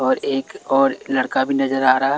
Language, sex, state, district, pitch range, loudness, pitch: Hindi, male, Chhattisgarh, Raipur, 130-135 Hz, -19 LUFS, 135 Hz